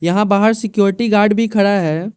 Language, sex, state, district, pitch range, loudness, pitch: Hindi, male, Arunachal Pradesh, Lower Dibang Valley, 200-220 Hz, -14 LUFS, 205 Hz